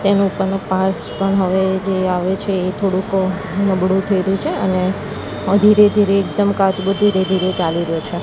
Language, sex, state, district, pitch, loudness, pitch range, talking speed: Gujarati, female, Gujarat, Gandhinagar, 190 Hz, -17 LUFS, 185-195 Hz, 170 wpm